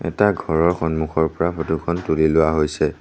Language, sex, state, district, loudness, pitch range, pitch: Assamese, male, Assam, Sonitpur, -20 LUFS, 80-85 Hz, 80 Hz